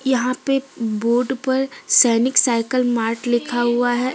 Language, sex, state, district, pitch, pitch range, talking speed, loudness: Hindi, female, Jharkhand, Deoghar, 245 Hz, 235-260 Hz, 145 wpm, -18 LUFS